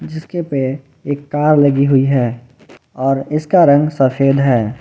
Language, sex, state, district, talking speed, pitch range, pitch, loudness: Hindi, male, Jharkhand, Garhwa, 150 wpm, 135-150 Hz, 140 Hz, -14 LUFS